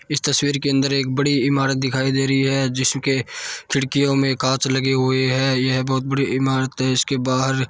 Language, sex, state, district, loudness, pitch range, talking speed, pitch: Hindi, male, Rajasthan, Churu, -19 LUFS, 130-135 Hz, 195 wpm, 135 Hz